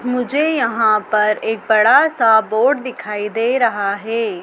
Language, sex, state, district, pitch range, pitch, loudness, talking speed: Hindi, female, Madhya Pradesh, Dhar, 215-250 Hz, 225 Hz, -16 LUFS, 150 wpm